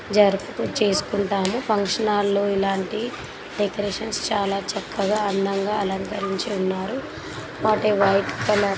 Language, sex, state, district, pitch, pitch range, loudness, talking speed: Telugu, female, Telangana, Nalgonda, 200 Hz, 195-210 Hz, -23 LUFS, 110 wpm